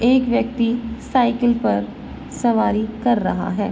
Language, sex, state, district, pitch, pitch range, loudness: Hindi, female, Uttar Pradesh, Varanasi, 235 Hz, 225-245 Hz, -19 LUFS